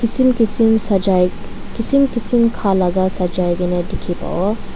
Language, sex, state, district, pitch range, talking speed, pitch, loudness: Nagamese, female, Nagaland, Dimapur, 180-230 Hz, 125 wpm, 200 Hz, -15 LUFS